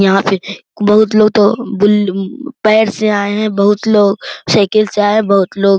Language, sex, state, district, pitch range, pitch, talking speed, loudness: Hindi, male, Bihar, Araria, 200-215 Hz, 205 Hz, 195 wpm, -12 LUFS